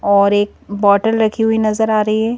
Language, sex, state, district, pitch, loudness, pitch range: Hindi, female, Madhya Pradesh, Bhopal, 215 Hz, -15 LUFS, 205-220 Hz